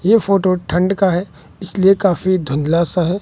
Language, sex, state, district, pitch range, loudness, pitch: Hindi, male, Bihar, West Champaran, 175-195 Hz, -16 LUFS, 185 Hz